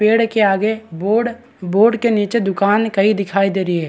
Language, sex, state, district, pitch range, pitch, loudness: Hindi, male, Chhattisgarh, Bastar, 195-225 Hz, 210 Hz, -16 LUFS